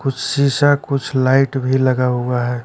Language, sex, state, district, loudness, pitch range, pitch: Hindi, male, Bihar, West Champaran, -16 LUFS, 125-140 Hz, 130 Hz